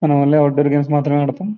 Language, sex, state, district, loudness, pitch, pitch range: Telugu, male, Andhra Pradesh, Guntur, -15 LUFS, 145 Hz, 145-150 Hz